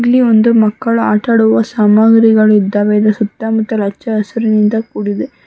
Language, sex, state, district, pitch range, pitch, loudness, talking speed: Kannada, female, Karnataka, Bangalore, 210-225 Hz, 220 Hz, -11 LUFS, 130 wpm